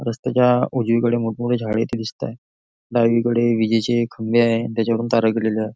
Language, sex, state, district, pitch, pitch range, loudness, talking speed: Marathi, male, Maharashtra, Nagpur, 115 Hz, 110-120 Hz, -19 LUFS, 175 wpm